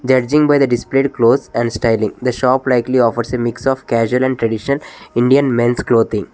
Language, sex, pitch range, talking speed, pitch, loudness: English, male, 115-130 Hz, 190 wpm, 125 Hz, -15 LUFS